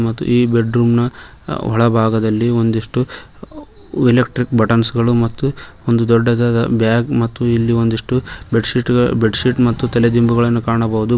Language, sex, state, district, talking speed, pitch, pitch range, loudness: Kannada, male, Karnataka, Koppal, 130 wpm, 115 Hz, 115-120 Hz, -15 LUFS